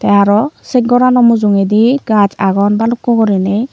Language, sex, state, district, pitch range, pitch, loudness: Chakma, female, Tripura, Unakoti, 200-245 Hz, 220 Hz, -11 LUFS